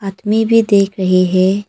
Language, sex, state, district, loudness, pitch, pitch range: Hindi, female, Arunachal Pradesh, Papum Pare, -13 LUFS, 195 Hz, 185-210 Hz